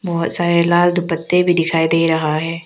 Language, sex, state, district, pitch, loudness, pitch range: Hindi, female, Arunachal Pradesh, Papum Pare, 165 Hz, -16 LUFS, 165-175 Hz